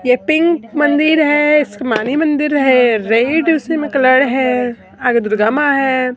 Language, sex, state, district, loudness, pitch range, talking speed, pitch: Hindi, female, Bihar, Katihar, -13 LUFS, 250-300 Hz, 145 wpm, 270 Hz